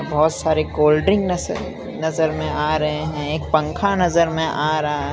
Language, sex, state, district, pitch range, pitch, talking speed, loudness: Hindi, male, Gujarat, Valsad, 150-160 Hz, 155 Hz, 200 wpm, -20 LUFS